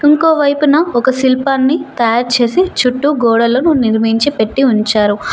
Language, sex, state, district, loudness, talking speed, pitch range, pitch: Telugu, female, Telangana, Mahabubabad, -12 LUFS, 110 wpm, 230-290 Hz, 260 Hz